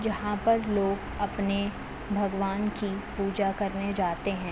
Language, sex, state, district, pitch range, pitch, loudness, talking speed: Hindi, female, Uttar Pradesh, Jalaun, 195-205 Hz, 200 Hz, -29 LUFS, 130 wpm